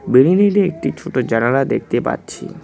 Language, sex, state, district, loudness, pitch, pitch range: Bengali, male, West Bengal, Cooch Behar, -16 LUFS, 135 Hz, 125-190 Hz